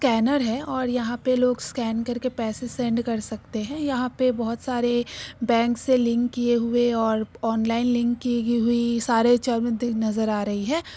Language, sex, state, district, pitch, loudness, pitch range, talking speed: Hindi, female, Uttar Pradesh, Jyotiba Phule Nagar, 240 Hz, -24 LUFS, 230-245 Hz, 180 wpm